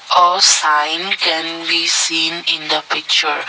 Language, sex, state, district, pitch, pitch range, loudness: English, male, Assam, Kamrup Metropolitan, 165 Hz, 155-170 Hz, -14 LUFS